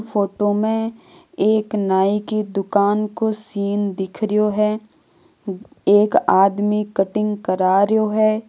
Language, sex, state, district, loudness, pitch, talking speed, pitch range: Marwari, female, Rajasthan, Nagaur, -19 LUFS, 210 Hz, 115 wpm, 200-215 Hz